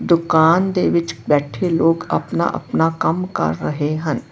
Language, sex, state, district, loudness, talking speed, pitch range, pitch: Punjabi, female, Karnataka, Bangalore, -18 LUFS, 140 wpm, 150-170 Hz, 165 Hz